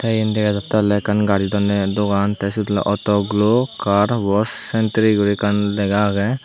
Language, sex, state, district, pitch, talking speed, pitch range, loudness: Chakma, male, Tripura, Unakoti, 105 Hz, 185 wpm, 100-110 Hz, -18 LUFS